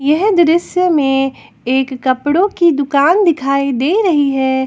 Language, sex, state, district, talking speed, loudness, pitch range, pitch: Hindi, female, Jharkhand, Palamu, 140 wpm, -13 LUFS, 270-345 Hz, 285 Hz